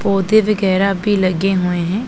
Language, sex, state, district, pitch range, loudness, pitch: Hindi, female, Punjab, Pathankot, 185-210 Hz, -15 LUFS, 195 Hz